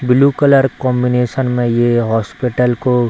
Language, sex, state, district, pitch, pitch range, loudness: Hindi, male, Bihar, Samastipur, 125 Hz, 120-130 Hz, -14 LUFS